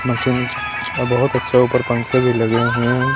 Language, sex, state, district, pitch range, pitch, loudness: Hindi, male, Maharashtra, Washim, 120-125 Hz, 125 Hz, -17 LUFS